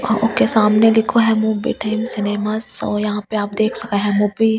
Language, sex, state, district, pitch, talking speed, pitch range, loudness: Hindi, female, Delhi, New Delhi, 220 Hz, 185 wpm, 210-225 Hz, -17 LUFS